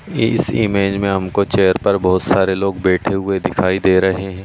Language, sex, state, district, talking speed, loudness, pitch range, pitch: Hindi, male, Uttar Pradesh, Ghazipur, 215 wpm, -16 LUFS, 95-100 Hz, 95 Hz